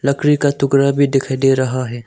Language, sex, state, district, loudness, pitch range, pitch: Hindi, male, Arunachal Pradesh, Longding, -15 LUFS, 130-140 Hz, 140 Hz